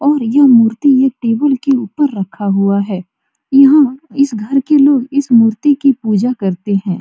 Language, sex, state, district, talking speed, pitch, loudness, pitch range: Hindi, female, Bihar, Supaul, 180 wpm, 255 Hz, -12 LUFS, 210-280 Hz